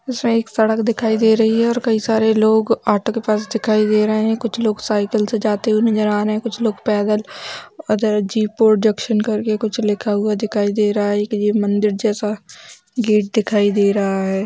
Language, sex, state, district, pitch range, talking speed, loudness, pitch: Hindi, female, Bihar, Darbhanga, 210-225 Hz, 205 wpm, -17 LUFS, 215 Hz